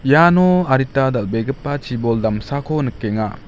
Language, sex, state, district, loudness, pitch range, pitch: Garo, male, Meghalaya, West Garo Hills, -17 LUFS, 115-145 Hz, 135 Hz